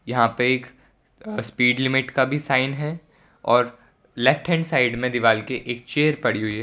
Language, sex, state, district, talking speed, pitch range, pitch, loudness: Hindi, male, Gujarat, Valsad, 190 wpm, 120-145 Hz, 130 Hz, -21 LUFS